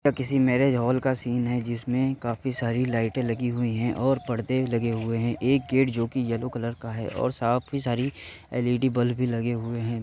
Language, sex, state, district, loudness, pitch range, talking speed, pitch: Hindi, male, Uttar Pradesh, Varanasi, -26 LUFS, 115-130 Hz, 235 wpm, 120 Hz